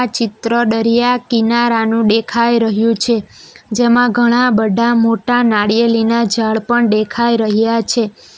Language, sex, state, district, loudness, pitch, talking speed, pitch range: Gujarati, female, Gujarat, Valsad, -13 LUFS, 230 Hz, 115 wpm, 225-235 Hz